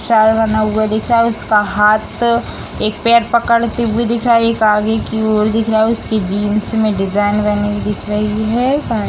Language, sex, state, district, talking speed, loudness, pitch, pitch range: Hindi, female, Bihar, Sitamarhi, 220 wpm, -14 LUFS, 220 Hz, 210-230 Hz